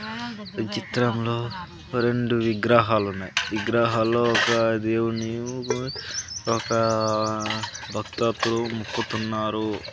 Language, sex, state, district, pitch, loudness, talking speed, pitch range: Telugu, male, Andhra Pradesh, Sri Satya Sai, 115 Hz, -24 LUFS, 65 wpm, 110-120 Hz